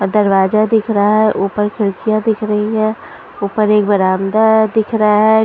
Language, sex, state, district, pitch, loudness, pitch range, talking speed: Hindi, female, Punjab, Pathankot, 215 Hz, -14 LUFS, 205-220 Hz, 175 wpm